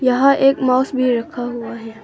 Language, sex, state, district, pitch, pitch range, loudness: Hindi, female, Arunachal Pradesh, Longding, 255 Hz, 235-260 Hz, -17 LUFS